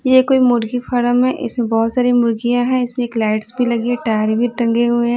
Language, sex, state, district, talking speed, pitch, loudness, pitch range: Hindi, female, Odisha, Nuapada, 245 wpm, 240 Hz, -16 LUFS, 230-245 Hz